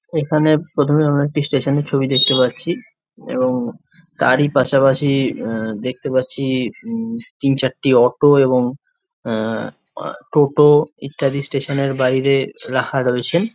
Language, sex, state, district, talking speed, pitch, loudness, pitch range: Bengali, male, West Bengal, Jhargram, 135 wpm, 140 Hz, -17 LUFS, 130-155 Hz